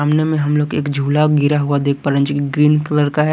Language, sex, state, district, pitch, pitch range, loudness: Hindi, male, Haryana, Rohtak, 145 Hz, 145-150 Hz, -16 LUFS